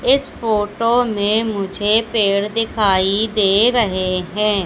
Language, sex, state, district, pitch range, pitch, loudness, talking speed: Hindi, female, Madhya Pradesh, Katni, 200-225 Hz, 210 Hz, -17 LUFS, 115 wpm